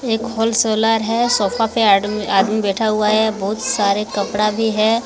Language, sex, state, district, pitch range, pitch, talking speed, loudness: Hindi, female, Jharkhand, Deoghar, 210-225 Hz, 220 Hz, 180 wpm, -17 LUFS